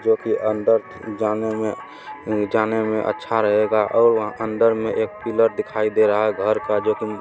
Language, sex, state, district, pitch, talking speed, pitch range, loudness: Hindi, male, Bihar, Supaul, 110 Hz, 190 wpm, 105-115 Hz, -20 LUFS